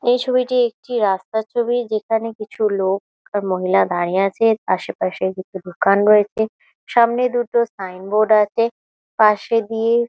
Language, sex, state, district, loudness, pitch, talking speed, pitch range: Bengali, female, West Bengal, Malda, -18 LUFS, 220 Hz, 145 wpm, 195-235 Hz